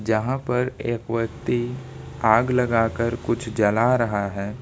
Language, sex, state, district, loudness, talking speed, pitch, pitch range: Hindi, male, Jharkhand, Ranchi, -23 LUFS, 130 wpm, 115 Hz, 110-125 Hz